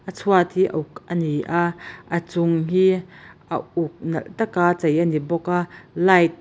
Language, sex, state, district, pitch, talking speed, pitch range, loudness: Mizo, female, Mizoram, Aizawl, 175 Hz, 180 wpm, 165-185 Hz, -21 LUFS